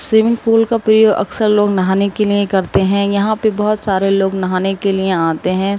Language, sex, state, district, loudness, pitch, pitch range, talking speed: Hindi, female, Uttar Pradesh, Budaun, -14 LUFS, 200 Hz, 190-215 Hz, 220 wpm